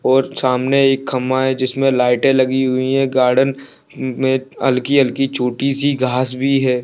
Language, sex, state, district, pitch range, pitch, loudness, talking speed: Hindi, male, Bihar, Kishanganj, 130-135 Hz, 130 Hz, -16 LUFS, 160 wpm